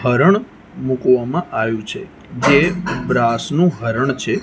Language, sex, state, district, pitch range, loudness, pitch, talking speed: Gujarati, male, Gujarat, Gandhinagar, 115-175 Hz, -17 LUFS, 130 Hz, 110 wpm